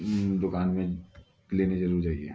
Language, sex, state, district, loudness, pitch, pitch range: Hindi, male, Bihar, Gaya, -28 LUFS, 90 Hz, 90-95 Hz